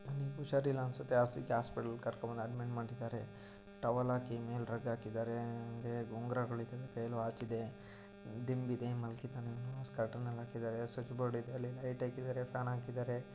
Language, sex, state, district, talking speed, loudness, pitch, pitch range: Kannada, male, Karnataka, Mysore, 125 wpm, -41 LUFS, 120 Hz, 115-125 Hz